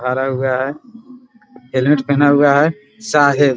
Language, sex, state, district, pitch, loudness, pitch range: Hindi, male, Bihar, Muzaffarpur, 145 Hz, -15 LUFS, 135-210 Hz